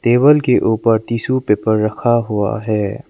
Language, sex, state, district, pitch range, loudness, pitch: Hindi, male, Arunachal Pradesh, Lower Dibang Valley, 105-120 Hz, -15 LUFS, 115 Hz